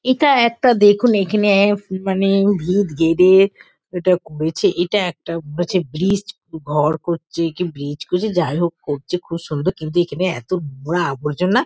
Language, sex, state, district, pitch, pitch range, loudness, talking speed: Bengali, female, West Bengal, Kolkata, 180 Hz, 160-195 Hz, -18 LUFS, 160 wpm